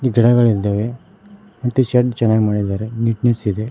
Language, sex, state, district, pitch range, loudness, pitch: Kannada, male, Karnataka, Koppal, 110-125 Hz, -17 LUFS, 115 Hz